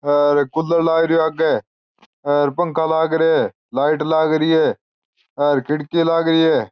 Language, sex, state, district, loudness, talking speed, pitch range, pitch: Marwari, male, Rajasthan, Churu, -17 LUFS, 180 wpm, 145-165 Hz, 160 Hz